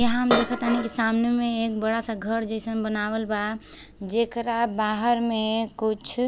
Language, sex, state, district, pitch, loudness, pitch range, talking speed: Bhojpuri, female, Uttar Pradesh, Deoria, 225 Hz, -24 LUFS, 220-235 Hz, 170 wpm